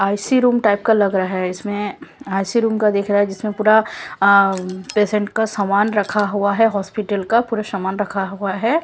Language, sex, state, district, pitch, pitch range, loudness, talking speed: Hindi, female, Punjab, Kapurthala, 205 Hz, 195-215 Hz, -18 LUFS, 195 wpm